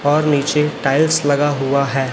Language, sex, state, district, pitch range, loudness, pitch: Hindi, male, Chhattisgarh, Raipur, 140-150 Hz, -16 LUFS, 145 Hz